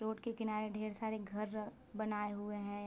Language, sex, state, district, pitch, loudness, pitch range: Hindi, female, Bihar, Gopalganj, 215 Hz, -41 LUFS, 210-220 Hz